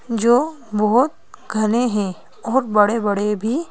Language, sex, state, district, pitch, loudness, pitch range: Hindi, female, Madhya Pradesh, Bhopal, 225 Hz, -19 LUFS, 210-250 Hz